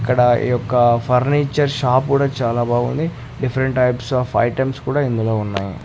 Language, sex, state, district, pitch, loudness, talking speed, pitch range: Telugu, male, Andhra Pradesh, Annamaya, 125 Hz, -18 LUFS, 155 wpm, 120-135 Hz